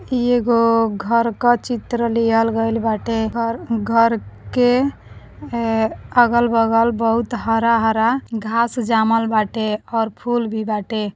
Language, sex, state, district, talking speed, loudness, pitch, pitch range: Bhojpuri, female, Uttar Pradesh, Deoria, 120 wpm, -18 LUFS, 230 Hz, 225-235 Hz